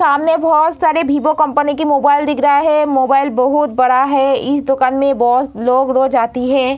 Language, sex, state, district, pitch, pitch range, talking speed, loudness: Hindi, female, Bihar, Samastipur, 275 Hz, 260-295 Hz, 195 wpm, -13 LUFS